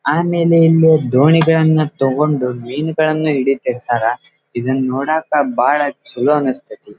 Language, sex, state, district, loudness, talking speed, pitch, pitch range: Kannada, male, Karnataka, Dharwad, -15 LUFS, 95 wpm, 150 Hz, 130-155 Hz